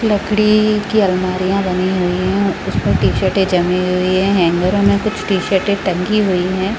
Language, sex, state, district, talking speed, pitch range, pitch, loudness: Hindi, female, Chhattisgarh, Balrampur, 195 wpm, 185-205 Hz, 190 Hz, -15 LUFS